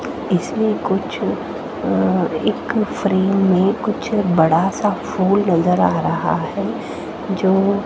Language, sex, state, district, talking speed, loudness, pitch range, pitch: Hindi, female, Haryana, Jhajjar, 115 wpm, -18 LUFS, 185-210 Hz, 195 Hz